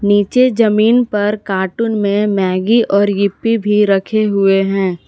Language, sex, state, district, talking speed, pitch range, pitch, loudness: Hindi, female, Jharkhand, Palamu, 140 wpm, 195-215 Hz, 205 Hz, -14 LUFS